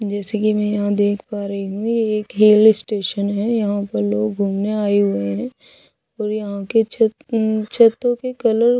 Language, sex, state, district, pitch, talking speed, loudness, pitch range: Hindi, female, Odisha, Sambalpur, 210 Hz, 190 wpm, -18 LUFS, 200-225 Hz